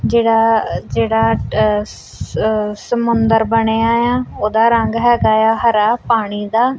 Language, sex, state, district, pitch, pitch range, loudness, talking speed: Punjabi, female, Punjab, Kapurthala, 225 Hz, 210-230 Hz, -15 LUFS, 115 wpm